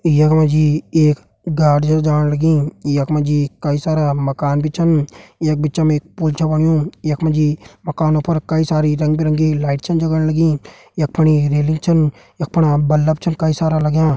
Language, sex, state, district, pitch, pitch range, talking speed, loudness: Hindi, male, Uttarakhand, Uttarkashi, 155 Hz, 150-160 Hz, 180 wpm, -16 LUFS